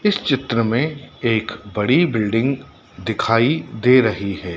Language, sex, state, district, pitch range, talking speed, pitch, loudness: Hindi, male, Madhya Pradesh, Dhar, 110-135 Hz, 130 wpm, 115 Hz, -19 LUFS